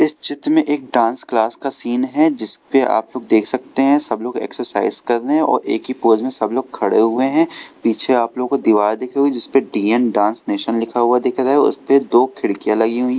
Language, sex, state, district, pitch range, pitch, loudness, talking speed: Hindi, male, Uttar Pradesh, Lucknow, 115-135 Hz, 125 Hz, -17 LUFS, 255 wpm